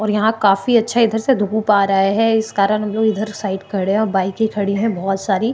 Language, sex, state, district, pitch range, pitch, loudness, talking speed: Hindi, female, Maharashtra, Chandrapur, 195-220 Hz, 210 Hz, -17 LUFS, 260 wpm